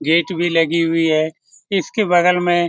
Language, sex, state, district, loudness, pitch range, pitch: Hindi, male, Bihar, Lakhisarai, -17 LUFS, 165-180 Hz, 170 Hz